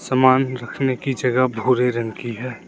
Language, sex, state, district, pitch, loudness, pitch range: Hindi, male, Arunachal Pradesh, Lower Dibang Valley, 130 Hz, -20 LUFS, 120-130 Hz